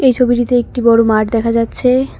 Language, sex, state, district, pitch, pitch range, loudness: Bengali, female, West Bengal, Cooch Behar, 240 Hz, 230-250 Hz, -13 LUFS